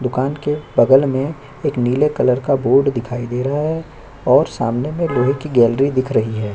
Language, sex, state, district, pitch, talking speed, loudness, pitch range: Hindi, male, Chhattisgarh, Korba, 135 Hz, 200 wpm, -17 LUFS, 125-145 Hz